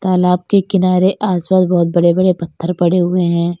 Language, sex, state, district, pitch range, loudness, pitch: Hindi, female, Uttar Pradesh, Lalitpur, 175-185 Hz, -14 LUFS, 180 Hz